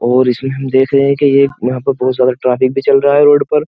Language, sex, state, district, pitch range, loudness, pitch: Hindi, male, Uttar Pradesh, Jyotiba Phule Nagar, 130-140 Hz, -12 LUFS, 135 Hz